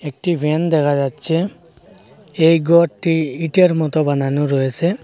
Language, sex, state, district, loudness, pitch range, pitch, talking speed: Bengali, male, Assam, Hailakandi, -16 LUFS, 145-170 Hz, 160 Hz, 120 wpm